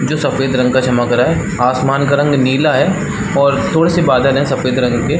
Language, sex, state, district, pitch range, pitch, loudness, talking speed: Hindi, male, Chhattisgarh, Balrampur, 130-150 Hz, 135 Hz, -13 LUFS, 240 wpm